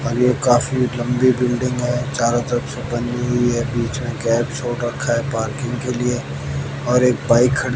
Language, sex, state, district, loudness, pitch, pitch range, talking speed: Hindi, male, Haryana, Jhajjar, -19 LUFS, 125 Hz, 120-125 Hz, 180 wpm